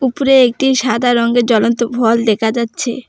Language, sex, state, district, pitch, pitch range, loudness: Bengali, female, West Bengal, Alipurduar, 240 Hz, 230-260 Hz, -13 LUFS